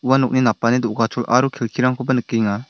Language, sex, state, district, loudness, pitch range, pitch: Garo, male, Meghalaya, West Garo Hills, -18 LUFS, 115-130 Hz, 125 Hz